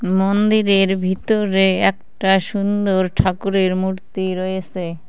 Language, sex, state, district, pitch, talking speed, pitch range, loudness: Bengali, female, West Bengal, Cooch Behar, 190 Hz, 80 wpm, 185-200 Hz, -18 LUFS